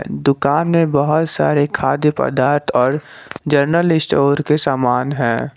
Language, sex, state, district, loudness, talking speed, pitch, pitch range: Hindi, male, Jharkhand, Garhwa, -16 LUFS, 130 wpm, 145 Hz, 140-155 Hz